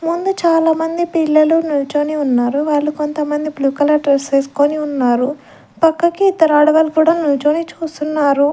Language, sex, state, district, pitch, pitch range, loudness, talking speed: Telugu, female, Andhra Pradesh, Sri Satya Sai, 300 Hz, 285-325 Hz, -15 LUFS, 135 wpm